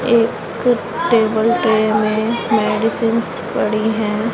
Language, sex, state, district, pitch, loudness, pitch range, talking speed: Hindi, female, Punjab, Pathankot, 220 Hz, -17 LUFS, 215-230 Hz, 95 wpm